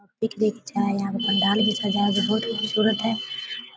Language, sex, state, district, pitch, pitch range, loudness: Hindi, female, Bihar, Darbhanga, 215 Hz, 205-220 Hz, -23 LUFS